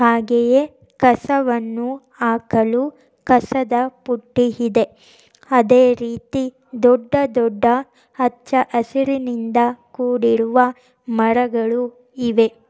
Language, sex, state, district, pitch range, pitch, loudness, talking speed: Kannada, female, Karnataka, Chamarajanagar, 235-255 Hz, 245 Hz, -18 LUFS, 60 wpm